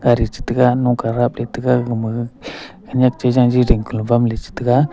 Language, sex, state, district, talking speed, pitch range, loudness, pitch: Wancho, male, Arunachal Pradesh, Longding, 205 wpm, 115-125 Hz, -17 LUFS, 120 Hz